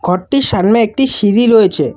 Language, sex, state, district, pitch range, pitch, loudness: Bengali, male, Assam, Kamrup Metropolitan, 185-235 Hz, 220 Hz, -11 LUFS